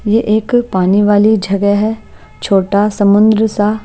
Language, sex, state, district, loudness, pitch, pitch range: Hindi, female, Punjab, Pathankot, -12 LUFS, 210 Hz, 200-220 Hz